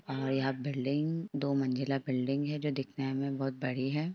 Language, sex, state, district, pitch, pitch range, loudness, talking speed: Hindi, female, Jharkhand, Sahebganj, 135 Hz, 135-140 Hz, -33 LUFS, 190 wpm